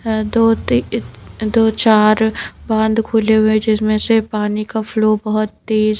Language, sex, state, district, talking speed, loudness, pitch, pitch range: Hindi, female, Madhya Pradesh, Bhopal, 130 wpm, -16 LUFS, 215 Hz, 215-220 Hz